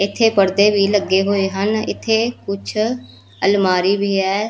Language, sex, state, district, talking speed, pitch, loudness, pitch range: Punjabi, female, Punjab, Pathankot, 145 wpm, 200 Hz, -17 LUFS, 195-215 Hz